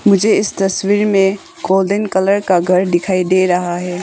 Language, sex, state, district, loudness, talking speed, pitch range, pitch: Hindi, female, Arunachal Pradesh, Longding, -14 LUFS, 180 wpm, 185-200 Hz, 190 Hz